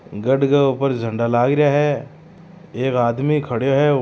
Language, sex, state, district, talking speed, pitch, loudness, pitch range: Marwari, male, Rajasthan, Churu, 165 wpm, 140 Hz, -18 LUFS, 125-145 Hz